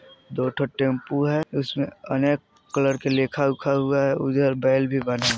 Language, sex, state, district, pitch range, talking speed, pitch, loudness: Bajjika, male, Bihar, Vaishali, 135-140 Hz, 180 wpm, 135 Hz, -23 LUFS